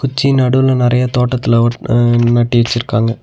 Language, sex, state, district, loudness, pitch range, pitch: Tamil, male, Tamil Nadu, Nilgiris, -13 LUFS, 120-130 Hz, 120 Hz